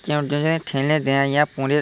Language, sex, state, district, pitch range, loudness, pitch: Bengali, male, West Bengal, Purulia, 140-150 Hz, -20 LUFS, 145 Hz